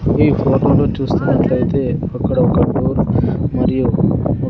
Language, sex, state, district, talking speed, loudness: Telugu, male, Andhra Pradesh, Sri Satya Sai, 95 wpm, -15 LUFS